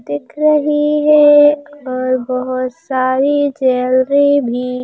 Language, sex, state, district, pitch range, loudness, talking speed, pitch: Hindi, female, Madhya Pradesh, Bhopal, 255-295 Hz, -14 LUFS, 100 wpm, 265 Hz